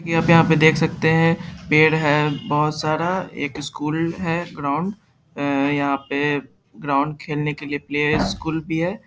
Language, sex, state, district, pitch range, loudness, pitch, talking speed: Hindi, male, Bihar, Saharsa, 145-165 Hz, -20 LUFS, 155 Hz, 170 wpm